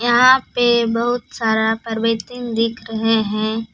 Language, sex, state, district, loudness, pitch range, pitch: Hindi, female, Jharkhand, Palamu, -18 LUFS, 225-240 Hz, 230 Hz